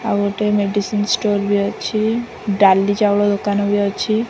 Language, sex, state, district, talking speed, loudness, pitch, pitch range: Odia, female, Odisha, Khordha, 155 wpm, -17 LUFS, 205 Hz, 200-210 Hz